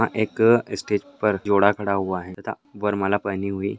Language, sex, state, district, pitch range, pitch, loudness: Hindi, male, Uttar Pradesh, Etah, 100-105 Hz, 100 Hz, -22 LUFS